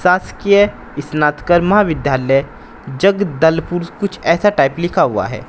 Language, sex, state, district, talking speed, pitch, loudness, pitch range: Hindi, male, Uttar Pradesh, Saharanpur, 110 wpm, 170 Hz, -15 LUFS, 150-195 Hz